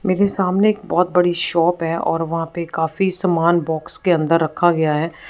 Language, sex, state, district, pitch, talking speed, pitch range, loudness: Hindi, female, Punjab, Fazilka, 170 Hz, 205 wpm, 165-185 Hz, -18 LUFS